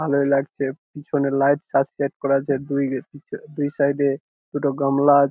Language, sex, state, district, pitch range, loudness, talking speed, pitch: Bengali, male, West Bengal, Jhargram, 140-145 Hz, -22 LUFS, 170 wpm, 140 Hz